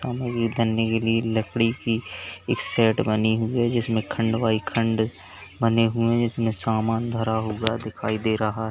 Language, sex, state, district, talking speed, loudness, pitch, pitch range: Hindi, male, Uttar Pradesh, Lalitpur, 150 wpm, -23 LUFS, 115 Hz, 110-115 Hz